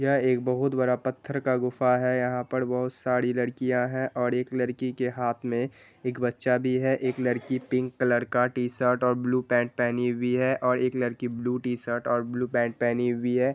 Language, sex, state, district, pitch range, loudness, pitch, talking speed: Hindi, male, Bihar, Gopalganj, 125-130 Hz, -27 LUFS, 125 Hz, 210 wpm